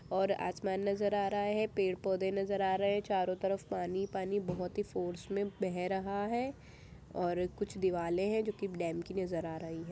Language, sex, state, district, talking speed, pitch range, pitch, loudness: Hindi, female, Bihar, Jamui, 220 wpm, 180-200 Hz, 195 Hz, -35 LUFS